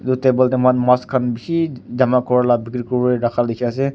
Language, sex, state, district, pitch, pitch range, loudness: Nagamese, male, Nagaland, Kohima, 125 Hz, 120-130 Hz, -18 LUFS